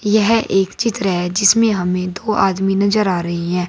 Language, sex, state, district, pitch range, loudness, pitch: Hindi, female, Uttar Pradesh, Saharanpur, 180-215 Hz, -16 LUFS, 195 Hz